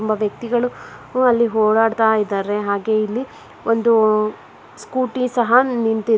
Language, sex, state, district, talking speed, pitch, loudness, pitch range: Kannada, female, Karnataka, Bangalore, 115 wpm, 225 Hz, -18 LUFS, 215-240 Hz